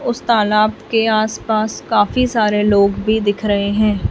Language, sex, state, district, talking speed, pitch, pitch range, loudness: Hindi, female, Chhattisgarh, Raipur, 160 wpm, 215 Hz, 205-220 Hz, -16 LUFS